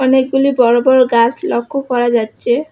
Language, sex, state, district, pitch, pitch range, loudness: Bengali, female, West Bengal, Alipurduar, 255 Hz, 240-270 Hz, -13 LUFS